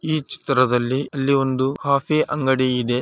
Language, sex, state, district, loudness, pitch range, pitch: Kannada, male, Karnataka, Raichur, -20 LUFS, 130-140 Hz, 135 Hz